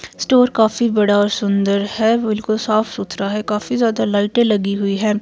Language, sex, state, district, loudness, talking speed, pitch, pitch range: Hindi, female, Himachal Pradesh, Shimla, -17 LUFS, 185 wpm, 215 Hz, 205-225 Hz